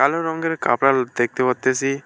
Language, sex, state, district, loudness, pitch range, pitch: Bengali, male, West Bengal, Alipurduar, -20 LUFS, 125-160 Hz, 135 Hz